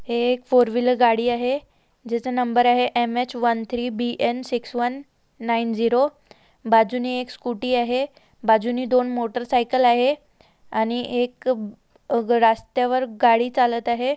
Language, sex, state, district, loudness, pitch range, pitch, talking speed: Marathi, female, Maharashtra, Solapur, -21 LUFS, 235-250 Hz, 245 Hz, 130 wpm